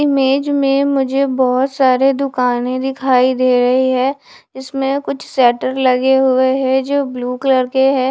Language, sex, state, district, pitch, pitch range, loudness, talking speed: Hindi, female, Haryana, Charkhi Dadri, 265 Hz, 255-270 Hz, -15 LUFS, 155 wpm